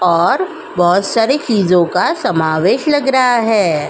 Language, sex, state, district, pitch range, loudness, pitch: Hindi, female, Uttar Pradesh, Jalaun, 180-275 Hz, -14 LUFS, 220 Hz